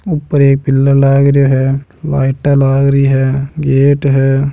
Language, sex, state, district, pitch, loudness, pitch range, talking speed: Hindi, male, Rajasthan, Nagaur, 140 Hz, -11 LUFS, 135-140 Hz, 160 wpm